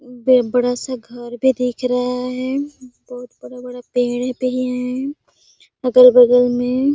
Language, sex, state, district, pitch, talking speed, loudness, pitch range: Hindi, female, Chhattisgarh, Sarguja, 250 Hz, 130 wpm, -17 LUFS, 245-255 Hz